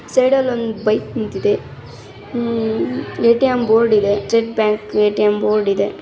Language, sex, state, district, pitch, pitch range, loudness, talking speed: Kannada, female, Karnataka, Raichur, 215 Hz, 205-230 Hz, -17 LUFS, 180 wpm